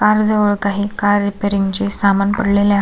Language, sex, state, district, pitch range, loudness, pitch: Marathi, female, Maharashtra, Solapur, 200-205 Hz, -16 LUFS, 205 Hz